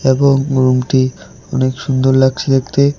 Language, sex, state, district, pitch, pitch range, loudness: Bengali, male, West Bengal, Alipurduar, 130 Hz, 130-140 Hz, -14 LUFS